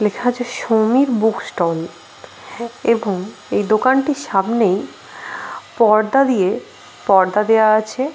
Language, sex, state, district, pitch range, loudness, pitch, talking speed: Bengali, female, West Bengal, Paschim Medinipur, 210-245 Hz, -17 LUFS, 225 Hz, 110 wpm